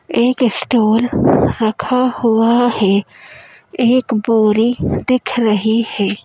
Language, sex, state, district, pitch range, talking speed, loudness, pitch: Hindi, female, Madhya Pradesh, Bhopal, 220-245 Hz, 95 wpm, -15 LUFS, 230 Hz